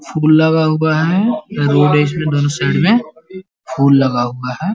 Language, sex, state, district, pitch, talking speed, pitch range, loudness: Hindi, male, Uttar Pradesh, Varanasi, 155 Hz, 165 wpm, 145-185 Hz, -14 LUFS